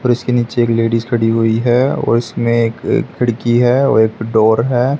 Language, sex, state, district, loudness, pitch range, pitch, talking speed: Hindi, male, Haryana, Charkhi Dadri, -14 LUFS, 115-125 Hz, 115 Hz, 205 wpm